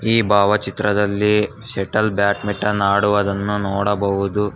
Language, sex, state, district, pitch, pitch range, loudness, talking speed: Kannada, male, Karnataka, Bangalore, 105 Hz, 100-105 Hz, -18 LUFS, 80 wpm